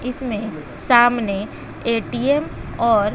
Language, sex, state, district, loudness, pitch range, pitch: Hindi, female, Bihar, West Champaran, -19 LUFS, 215-250 Hz, 235 Hz